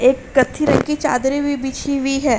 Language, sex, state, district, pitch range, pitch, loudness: Hindi, female, Uttar Pradesh, Hamirpur, 260-285 Hz, 270 Hz, -18 LUFS